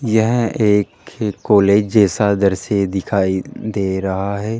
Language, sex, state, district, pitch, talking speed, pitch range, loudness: Hindi, male, Rajasthan, Jaipur, 100 Hz, 130 wpm, 100-110 Hz, -17 LUFS